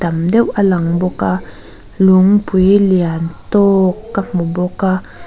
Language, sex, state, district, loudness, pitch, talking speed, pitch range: Mizo, female, Mizoram, Aizawl, -14 LUFS, 185 Hz, 150 wpm, 170-195 Hz